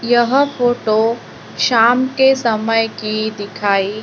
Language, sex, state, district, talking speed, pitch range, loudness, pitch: Hindi, female, Maharashtra, Gondia, 105 wpm, 215-245 Hz, -15 LUFS, 225 Hz